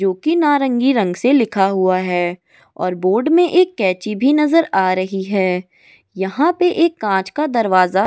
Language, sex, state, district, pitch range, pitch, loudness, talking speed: Hindi, female, Goa, North and South Goa, 185-295 Hz, 205 Hz, -16 LUFS, 185 wpm